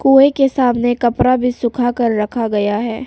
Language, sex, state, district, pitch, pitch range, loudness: Hindi, female, Arunachal Pradesh, Papum Pare, 240 Hz, 230-255 Hz, -15 LUFS